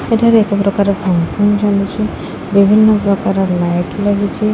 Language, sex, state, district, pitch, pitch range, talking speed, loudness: Odia, female, Odisha, Khordha, 200 Hz, 195-210 Hz, 120 wpm, -13 LUFS